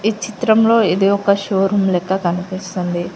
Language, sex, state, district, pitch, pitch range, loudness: Telugu, female, Telangana, Mahabubabad, 195 Hz, 185-215 Hz, -16 LUFS